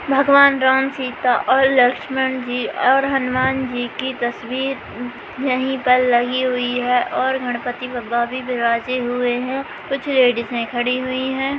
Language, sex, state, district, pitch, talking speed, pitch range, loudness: Hindi, female, Bihar, Begusarai, 255 Hz, 135 wpm, 245-265 Hz, -18 LUFS